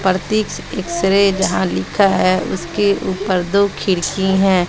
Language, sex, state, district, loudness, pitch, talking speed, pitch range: Hindi, female, Bihar, West Champaran, -16 LUFS, 190 Hz, 130 wpm, 185-200 Hz